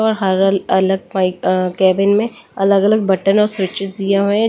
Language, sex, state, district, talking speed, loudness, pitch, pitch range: Hindi, female, Delhi, New Delhi, 160 wpm, -15 LUFS, 195 Hz, 190-205 Hz